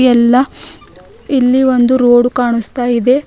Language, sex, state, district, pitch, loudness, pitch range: Kannada, female, Karnataka, Bidar, 250 Hz, -12 LUFS, 240-260 Hz